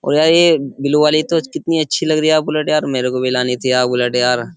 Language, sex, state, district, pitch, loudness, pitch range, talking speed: Hindi, male, Uttar Pradesh, Jyotiba Phule Nagar, 145 Hz, -15 LUFS, 125-155 Hz, 275 wpm